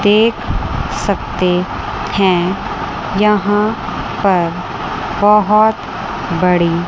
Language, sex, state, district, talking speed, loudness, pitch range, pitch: Hindi, female, Chandigarh, Chandigarh, 60 wpm, -15 LUFS, 180-210 Hz, 195 Hz